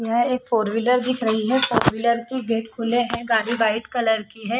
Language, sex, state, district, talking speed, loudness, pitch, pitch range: Hindi, female, Chhattisgarh, Rajnandgaon, 210 wpm, -21 LUFS, 235 Hz, 225-245 Hz